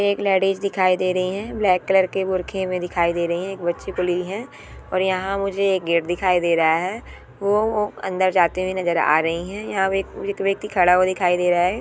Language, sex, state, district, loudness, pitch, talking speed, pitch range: Hindi, female, Andhra Pradesh, Chittoor, -21 LUFS, 185 Hz, 235 wpm, 180-195 Hz